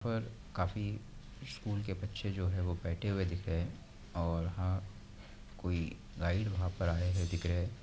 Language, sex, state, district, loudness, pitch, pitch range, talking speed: Hindi, male, Uttar Pradesh, Budaun, -37 LUFS, 95 Hz, 85-105 Hz, 190 wpm